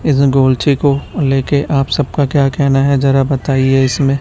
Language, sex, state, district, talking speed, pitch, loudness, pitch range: Hindi, male, Chhattisgarh, Raipur, 155 wpm, 140 Hz, -13 LUFS, 135-140 Hz